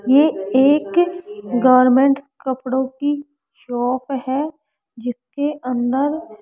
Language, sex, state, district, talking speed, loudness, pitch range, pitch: Hindi, female, Rajasthan, Jaipur, 95 wpm, -19 LUFS, 250-290 Hz, 265 Hz